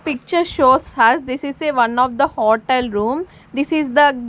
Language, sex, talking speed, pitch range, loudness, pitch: English, female, 195 wpm, 245-295 Hz, -17 LUFS, 260 Hz